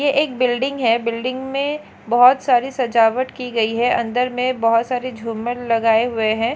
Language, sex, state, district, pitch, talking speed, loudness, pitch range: Hindi, female, Bihar, Jamui, 245 Hz, 185 wpm, -18 LUFS, 230-255 Hz